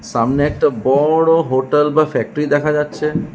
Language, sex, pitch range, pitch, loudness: Bengali, male, 140-155 Hz, 150 Hz, -15 LUFS